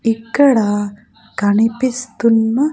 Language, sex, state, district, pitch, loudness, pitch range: Telugu, female, Andhra Pradesh, Sri Satya Sai, 225 Hz, -15 LUFS, 210-250 Hz